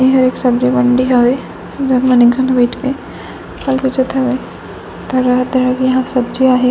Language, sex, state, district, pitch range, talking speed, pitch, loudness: Chhattisgarhi, female, Chhattisgarh, Raigarh, 250-260 Hz, 195 wpm, 255 Hz, -13 LUFS